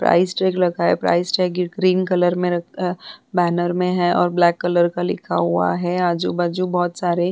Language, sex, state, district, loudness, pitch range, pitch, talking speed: Hindi, female, Bihar, Vaishali, -19 LUFS, 175-180 Hz, 175 Hz, 205 wpm